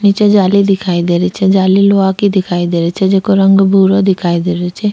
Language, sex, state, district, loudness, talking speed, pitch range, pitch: Rajasthani, female, Rajasthan, Churu, -11 LUFS, 245 wpm, 180-195 Hz, 195 Hz